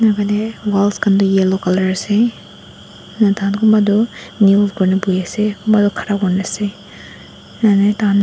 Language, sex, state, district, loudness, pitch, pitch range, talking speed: Nagamese, female, Nagaland, Dimapur, -15 LUFS, 205 Hz, 195-210 Hz, 205 wpm